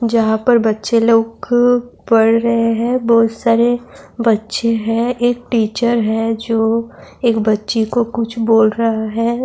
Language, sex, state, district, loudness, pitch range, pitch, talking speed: Urdu, female, Bihar, Saharsa, -15 LUFS, 225-235 Hz, 230 Hz, 140 wpm